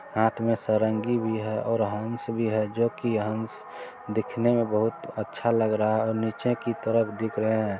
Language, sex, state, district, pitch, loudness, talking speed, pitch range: Maithili, male, Bihar, Supaul, 110 Hz, -27 LUFS, 190 wpm, 110-115 Hz